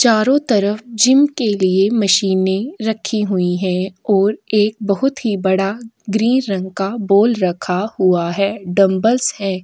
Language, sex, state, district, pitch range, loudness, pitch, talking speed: Hindi, female, Uttar Pradesh, Etah, 190-225 Hz, -16 LUFS, 205 Hz, 145 wpm